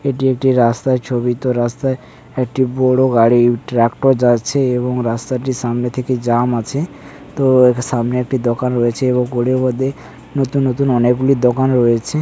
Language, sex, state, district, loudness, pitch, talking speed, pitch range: Bengali, male, West Bengal, Paschim Medinipur, -16 LUFS, 125 Hz, 140 wpm, 120-130 Hz